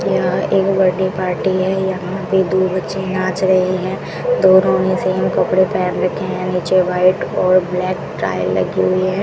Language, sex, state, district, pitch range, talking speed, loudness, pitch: Hindi, female, Rajasthan, Bikaner, 185-190 Hz, 175 wpm, -16 LUFS, 185 Hz